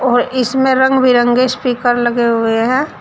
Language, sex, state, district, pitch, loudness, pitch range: Hindi, female, Uttar Pradesh, Shamli, 250 Hz, -13 LUFS, 240-260 Hz